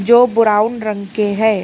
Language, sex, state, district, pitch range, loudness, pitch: Hindi, female, Karnataka, Bangalore, 210-230 Hz, -15 LUFS, 215 Hz